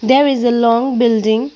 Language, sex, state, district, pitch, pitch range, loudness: English, female, Arunachal Pradesh, Lower Dibang Valley, 240 Hz, 230-265 Hz, -13 LUFS